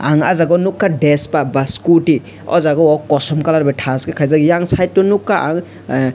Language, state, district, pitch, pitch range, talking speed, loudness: Kokborok, Tripura, West Tripura, 155 Hz, 145-170 Hz, 205 wpm, -14 LUFS